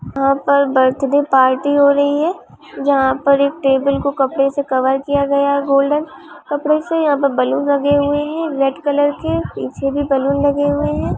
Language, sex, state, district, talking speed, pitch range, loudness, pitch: Hindi, female, Bihar, Vaishali, 190 wpm, 275-285 Hz, -16 LUFS, 280 Hz